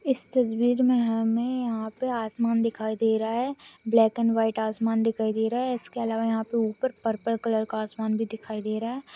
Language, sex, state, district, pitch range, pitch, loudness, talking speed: Hindi, female, West Bengal, Dakshin Dinajpur, 220-240 Hz, 225 Hz, -26 LUFS, 215 wpm